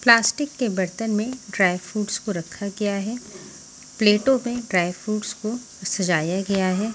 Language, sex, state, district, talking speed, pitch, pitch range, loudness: Hindi, female, Delhi, New Delhi, 155 wpm, 210 Hz, 190-230 Hz, -23 LUFS